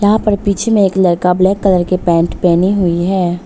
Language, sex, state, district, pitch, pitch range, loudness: Hindi, female, Arunachal Pradesh, Papum Pare, 185 Hz, 175-200 Hz, -13 LUFS